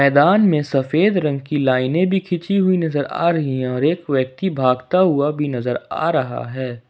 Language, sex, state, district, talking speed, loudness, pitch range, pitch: Hindi, male, Jharkhand, Ranchi, 200 wpm, -18 LUFS, 130-175 Hz, 145 Hz